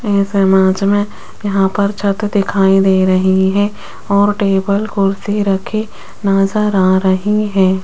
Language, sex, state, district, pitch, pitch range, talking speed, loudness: Hindi, female, Rajasthan, Jaipur, 200 Hz, 190-205 Hz, 140 wpm, -14 LUFS